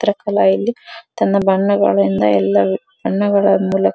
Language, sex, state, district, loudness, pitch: Kannada, female, Karnataka, Dharwad, -15 LUFS, 195 Hz